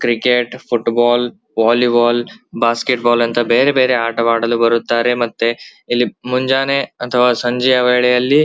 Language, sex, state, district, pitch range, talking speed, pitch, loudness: Kannada, male, Karnataka, Belgaum, 120-125 Hz, 115 wpm, 120 Hz, -15 LUFS